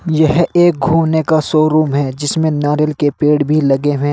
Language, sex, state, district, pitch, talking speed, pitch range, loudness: Hindi, male, Uttar Pradesh, Saharanpur, 155 Hz, 190 wpm, 145-160 Hz, -13 LUFS